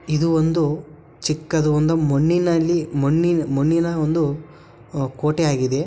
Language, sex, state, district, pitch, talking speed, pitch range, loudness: Kannada, male, Karnataka, Shimoga, 155 Hz, 80 wpm, 145-165 Hz, -20 LUFS